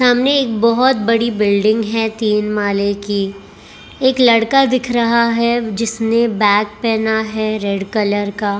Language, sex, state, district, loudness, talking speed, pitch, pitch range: Hindi, female, Maharashtra, Mumbai Suburban, -15 LUFS, 145 wpm, 220 Hz, 205-235 Hz